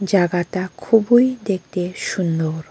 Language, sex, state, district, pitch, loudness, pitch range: Bengali, female, Tripura, West Tripura, 185 Hz, -19 LUFS, 175-220 Hz